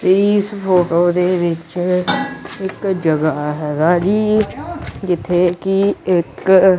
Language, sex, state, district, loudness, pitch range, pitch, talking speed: Punjabi, male, Punjab, Kapurthala, -16 LUFS, 170-190 Hz, 180 Hz, 95 wpm